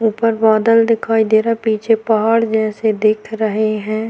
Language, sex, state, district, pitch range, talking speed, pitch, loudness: Hindi, female, Uttarakhand, Tehri Garhwal, 215-225 Hz, 175 wpm, 220 Hz, -15 LUFS